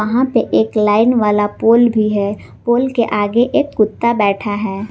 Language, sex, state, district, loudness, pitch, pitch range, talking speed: Hindi, female, Jharkhand, Palamu, -15 LUFS, 220 Hz, 205-235 Hz, 185 wpm